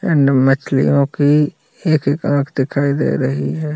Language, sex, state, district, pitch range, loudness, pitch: Hindi, male, Bihar, Jahanabad, 135-150 Hz, -16 LUFS, 145 Hz